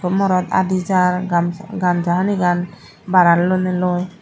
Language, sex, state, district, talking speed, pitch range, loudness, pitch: Chakma, female, Tripura, Dhalai, 130 wpm, 175-185 Hz, -17 LUFS, 180 Hz